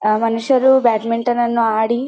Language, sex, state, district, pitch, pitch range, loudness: Kannada, female, Karnataka, Dharwad, 235 Hz, 225-245 Hz, -16 LUFS